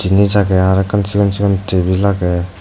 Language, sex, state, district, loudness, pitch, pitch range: Chakma, male, Tripura, Dhalai, -14 LUFS, 95 Hz, 95-100 Hz